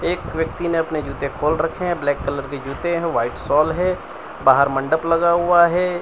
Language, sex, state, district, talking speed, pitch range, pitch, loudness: Hindi, male, Gujarat, Valsad, 210 wpm, 145-175 Hz, 165 Hz, -19 LUFS